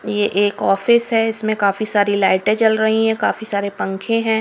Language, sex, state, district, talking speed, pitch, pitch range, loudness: Hindi, female, Haryana, Rohtak, 205 wpm, 215 Hz, 205-225 Hz, -17 LUFS